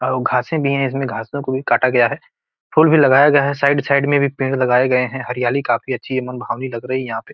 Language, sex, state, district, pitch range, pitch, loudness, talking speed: Hindi, male, Bihar, Gopalganj, 125-140 Hz, 130 Hz, -17 LUFS, 270 wpm